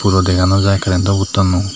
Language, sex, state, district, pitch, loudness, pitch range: Chakma, male, Tripura, Dhalai, 95 Hz, -14 LUFS, 90-100 Hz